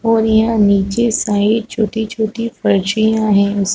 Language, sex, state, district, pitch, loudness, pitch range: Hindi, female, Chhattisgarh, Rajnandgaon, 220 Hz, -15 LUFS, 205-225 Hz